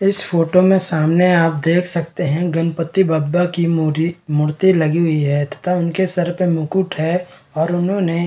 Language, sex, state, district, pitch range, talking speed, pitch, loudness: Hindi, male, Bihar, Kishanganj, 160-180 Hz, 180 wpm, 170 Hz, -17 LUFS